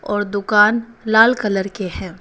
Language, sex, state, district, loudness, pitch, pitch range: Hindi, female, Arunachal Pradesh, Papum Pare, -17 LUFS, 210 Hz, 200-220 Hz